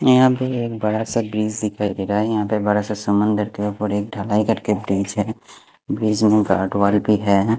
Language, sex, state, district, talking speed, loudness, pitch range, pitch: Hindi, male, Haryana, Rohtak, 215 wpm, -20 LUFS, 105-110 Hz, 105 Hz